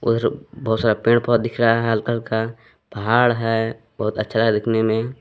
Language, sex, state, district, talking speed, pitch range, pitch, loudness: Hindi, male, Jharkhand, Palamu, 195 wpm, 110-115 Hz, 115 Hz, -20 LUFS